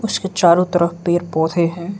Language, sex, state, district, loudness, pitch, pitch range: Hindi, male, Arunachal Pradesh, Lower Dibang Valley, -17 LUFS, 175 Hz, 170-180 Hz